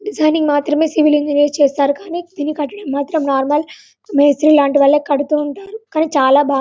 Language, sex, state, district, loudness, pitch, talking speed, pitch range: Telugu, female, Telangana, Karimnagar, -15 LUFS, 295 Hz, 180 wpm, 285-315 Hz